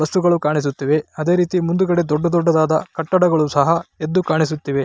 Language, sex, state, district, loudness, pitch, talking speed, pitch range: Kannada, male, Karnataka, Raichur, -18 LUFS, 160 Hz, 150 wpm, 150-175 Hz